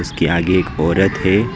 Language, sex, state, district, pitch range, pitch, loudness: Hindi, male, West Bengal, Alipurduar, 85-95 Hz, 90 Hz, -16 LUFS